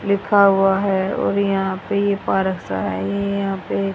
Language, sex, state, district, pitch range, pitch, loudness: Hindi, female, Haryana, Rohtak, 190-200 Hz, 195 Hz, -19 LUFS